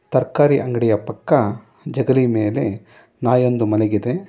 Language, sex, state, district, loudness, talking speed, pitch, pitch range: Kannada, male, Karnataka, Bangalore, -18 LUFS, 100 wpm, 125 Hz, 110-135 Hz